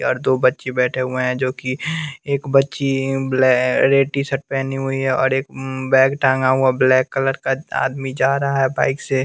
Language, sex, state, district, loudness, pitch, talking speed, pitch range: Hindi, male, Bihar, West Champaran, -18 LUFS, 135 Hz, 195 wpm, 130-135 Hz